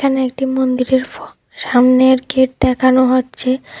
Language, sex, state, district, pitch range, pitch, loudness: Bengali, female, Tripura, West Tripura, 255-260 Hz, 260 Hz, -14 LUFS